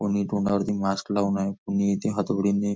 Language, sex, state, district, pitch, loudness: Marathi, male, Maharashtra, Nagpur, 100 Hz, -25 LUFS